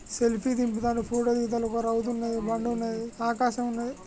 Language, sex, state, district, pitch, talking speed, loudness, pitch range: Telugu, male, Andhra Pradesh, Guntur, 235 Hz, 175 wpm, -28 LUFS, 230-240 Hz